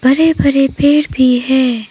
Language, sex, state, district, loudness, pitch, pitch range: Hindi, female, Arunachal Pradesh, Papum Pare, -12 LUFS, 265 Hz, 255-285 Hz